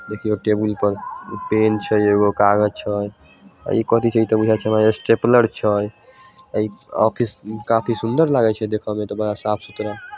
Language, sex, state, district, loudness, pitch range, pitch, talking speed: Maithili, male, Bihar, Samastipur, -19 LUFS, 105-115 Hz, 110 Hz, 190 wpm